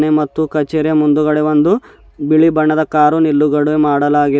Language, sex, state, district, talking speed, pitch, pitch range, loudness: Kannada, male, Karnataka, Bidar, 120 wpm, 150 Hz, 150-155 Hz, -13 LUFS